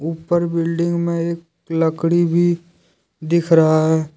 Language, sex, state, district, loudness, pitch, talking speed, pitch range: Hindi, male, Jharkhand, Deoghar, -18 LUFS, 165 Hz, 130 wpm, 160-170 Hz